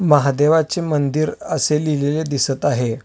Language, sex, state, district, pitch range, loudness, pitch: Marathi, male, Maharashtra, Solapur, 140-155 Hz, -18 LUFS, 150 Hz